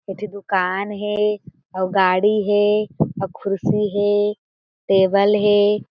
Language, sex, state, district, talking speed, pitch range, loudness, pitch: Chhattisgarhi, female, Chhattisgarh, Jashpur, 120 wpm, 190-210 Hz, -19 LUFS, 205 Hz